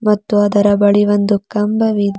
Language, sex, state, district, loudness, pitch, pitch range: Kannada, female, Karnataka, Bidar, -14 LUFS, 205 Hz, 205-210 Hz